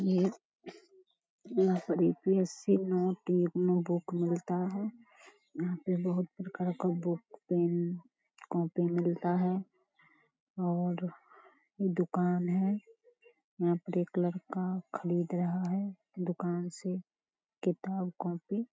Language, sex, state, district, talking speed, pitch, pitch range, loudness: Hindi, female, Bihar, Lakhisarai, 70 wpm, 180 Hz, 175-195 Hz, -33 LUFS